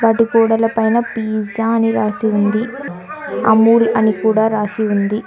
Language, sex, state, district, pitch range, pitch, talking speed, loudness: Telugu, female, Telangana, Hyderabad, 215-230 Hz, 225 Hz, 135 wpm, -15 LUFS